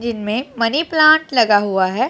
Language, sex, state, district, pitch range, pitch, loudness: Hindi, female, Punjab, Pathankot, 210-295 Hz, 235 Hz, -15 LUFS